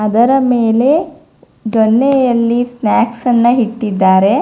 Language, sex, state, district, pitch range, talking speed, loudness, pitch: Kannada, female, Karnataka, Bangalore, 220-245 Hz, 80 wpm, -12 LUFS, 235 Hz